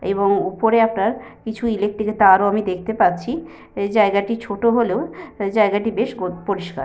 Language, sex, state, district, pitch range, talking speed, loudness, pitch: Bengali, female, Jharkhand, Sahebganj, 200-225 Hz, 155 wpm, -19 LUFS, 210 Hz